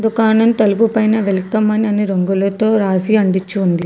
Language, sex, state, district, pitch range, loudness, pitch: Telugu, female, Telangana, Hyderabad, 195-220 Hz, -15 LUFS, 210 Hz